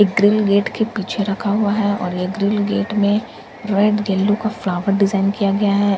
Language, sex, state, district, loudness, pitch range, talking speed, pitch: Hindi, female, Bihar, Katihar, -18 LUFS, 195-210 Hz, 220 wpm, 205 Hz